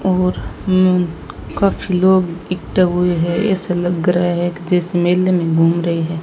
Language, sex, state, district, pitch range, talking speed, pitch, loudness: Hindi, female, Rajasthan, Bikaner, 175-185 Hz, 175 wpm, 180 Hz, -16 LUFS